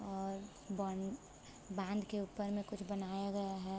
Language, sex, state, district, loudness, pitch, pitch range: Hindi, female, Uttarakhand, Tehri Garhwal, -42 LUFS, 195 Hz, 195-205 Hz